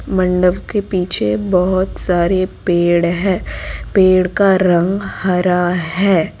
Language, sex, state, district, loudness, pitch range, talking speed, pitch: Hindi, female, Gujarat, Valsad, -15 LUFS, 175-190 Hz, 110 wpm, 180 Hz